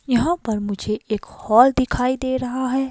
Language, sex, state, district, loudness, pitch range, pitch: Hindi, female, Himachal Pradesh, Shimla, -20 LUFS, 215-260 Hz, 250 Hz